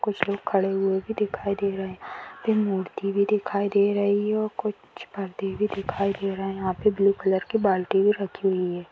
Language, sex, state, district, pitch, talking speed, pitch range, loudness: Hindi, female, Maharashtra, Nagpur, 200 Hz, 220 wpm, 195-210 Hz, -25 LUFS